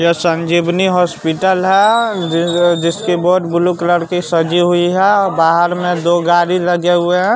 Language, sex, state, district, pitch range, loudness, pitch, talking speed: Hindi, male, Bihar, West Champaran, 170-180 Hz, -13 LUFS, 175 Hz, 155 wpm